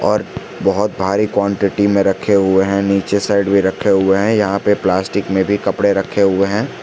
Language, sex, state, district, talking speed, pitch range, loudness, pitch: Hindi, male, Jharkhand, Garhwa, 200 wpm, 95-100 Hz, -15 LUFS, 100 Hz